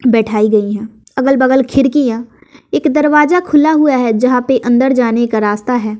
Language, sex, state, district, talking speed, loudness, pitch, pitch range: Hindi, female, Bihar, West Champaran, 180 wpm, -12 LUFS, 250 Hz, 225-270 Hz